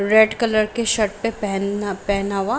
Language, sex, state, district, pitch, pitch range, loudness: Hindi, female, Jharkhand, Sahebganj, 210 Hz, 200-220 Hz, -20 LUFS